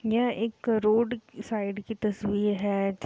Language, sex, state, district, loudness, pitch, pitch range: Hindi, female, Bihar, Purnia, -28 LUFS, 215 Hz, 205-225 Hz